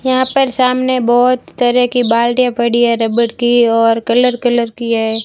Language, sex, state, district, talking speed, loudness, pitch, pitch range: Hindi, female, Rajasthan, Barmer, 180 wpm, -13 LUFS, 240 Hz, 230-250 Hz